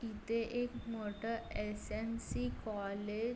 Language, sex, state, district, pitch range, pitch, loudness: Marathi, female, Maharashtra, Sindhudurg, 210-230 Hz, 220 Hz, -41 LUFS